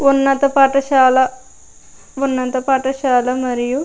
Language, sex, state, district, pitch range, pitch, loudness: Telugu, female, Andhra Pradesh, Krishna, 255-275 Hz, 265 Hz, -15 LUFS